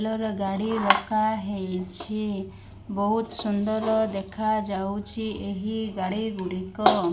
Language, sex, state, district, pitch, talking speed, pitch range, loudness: Odia, female, Odisha, Malkangiri, 215 Hz, 85 wpm, 195-220 Hz, -27 LUFS